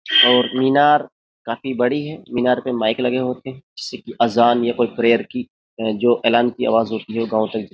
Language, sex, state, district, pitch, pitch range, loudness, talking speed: Hindi, male, Uttar Pradesh, Jyotiba Phule Nagar, 120 Hz, 115-130 Hz, -18 LUFS, 210 wpm